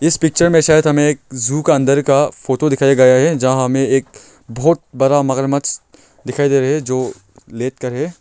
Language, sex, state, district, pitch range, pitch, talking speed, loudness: Hindi, male, Arunachal Pradesh, Longding, 130-150 Hz, 135 Hz, 195 wpm, -15 LUFS